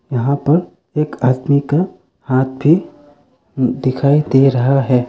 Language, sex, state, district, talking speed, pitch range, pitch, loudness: Hindi, male, Arunachal Pradesh, Lower Dibang Valley, 130 wpm, 130-145 Hz, 135 Hz, -15 LUFS